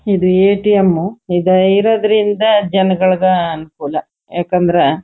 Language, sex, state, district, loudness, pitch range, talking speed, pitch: Kannada, female, Karnataka, Chamarajanagar, -13 LUFS, 175-205 Hz, 85 wpm, 185 Hz